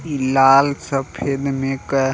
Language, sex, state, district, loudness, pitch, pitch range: Bhojpuri, male, Uttar Pradesh, Deoria, -18 LUFS, 135 Hz, 135-140 Hz